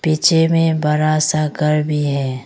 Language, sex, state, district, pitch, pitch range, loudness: Hindi, female, Arunachal Pradesh, Longding, 155 Hz, 150-160 Hz, -16 LUFS